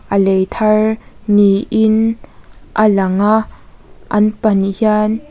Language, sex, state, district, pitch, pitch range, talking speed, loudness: Mizo, female, Mizoram, Aizawl, 215 Hz, 200-220 Hz, 135 wpm, -14 LUFS